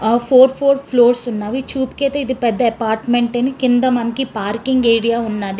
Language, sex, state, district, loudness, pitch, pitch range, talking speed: Telugu, female, Andhra Pradesh, Srikakulam, -16 LUFS, 240 Hz, 230-260 Hz, 150 wpm